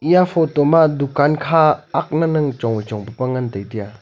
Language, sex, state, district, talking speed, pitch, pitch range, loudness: Wancho, male, Arunachal Pradesh, Longding, 210 wpm, 145 Hz, 115-160 Hz, -17 LUFS